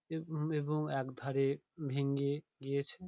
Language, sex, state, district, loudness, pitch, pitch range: Bengali, male, West Bengal, Dakshin Dinajpur, -37 LUFS, 140 Hz, 140-155 Hz